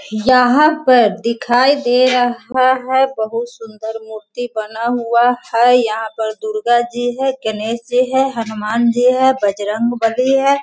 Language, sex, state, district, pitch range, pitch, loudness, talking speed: Hindi, female, Bihar, Sitamarhi, 220-255 Hz, 240 Hz, -15 LUFS, 140 wpm